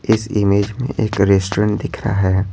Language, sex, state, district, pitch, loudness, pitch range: Hindi, male, Bihar, Patna, 105 Hz, -17 LUFS, 100-110 Hz